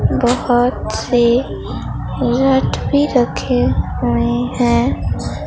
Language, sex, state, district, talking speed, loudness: Hindi, female, Bihar, Katihar, 75 wpm, -16 LUFS